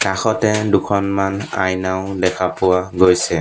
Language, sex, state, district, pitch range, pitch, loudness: Assamese, male, Assam, Sonitpur, 95-100 Hz, 95 Hz, -17 LUFS